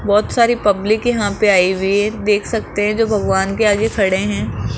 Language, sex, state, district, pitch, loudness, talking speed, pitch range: Hindi, male, Rajasthan, Jaipur, 205 Hz, -16 LUFS, 215 wpm, 190-215 Hz